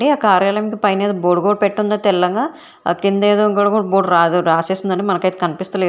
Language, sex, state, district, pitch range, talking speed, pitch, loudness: Telugu, female, Telangana, Hyderabad, 180-210 Hz, 155 wpm, 200 Hz, -16 LUFS